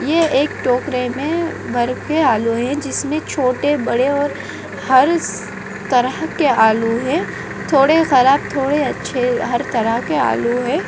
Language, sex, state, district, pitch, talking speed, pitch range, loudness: Hindi, female, Bihar, Purnia, 260 Hz, 140 wpm, 240-290 Hz, -17 LUFS